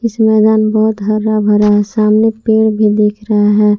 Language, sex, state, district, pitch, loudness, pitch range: Hindi, female, Jharkhand, Palamu, 215 Hz, -11 LUFS, 210-220 Hz